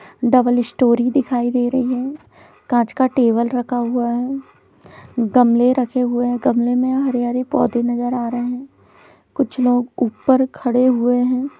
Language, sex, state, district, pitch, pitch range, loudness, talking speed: Hindi, female, Chhattisgarh, Bilaspur, 245 Hz, 240-255 Hz, -18 LUFS, 160 wpm